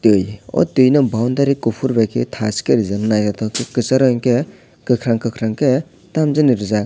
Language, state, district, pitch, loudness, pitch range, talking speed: Kokborok, Tripura, West Tripura, 120 Hz, -17 LUFS, 110-135 Hz, 175 wpm